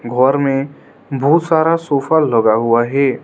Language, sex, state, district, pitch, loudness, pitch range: Hindi, male, Arunachal Pradesh, Lower Dibang Valley, 135 Hz, -14 LUFS, 120-160 Hz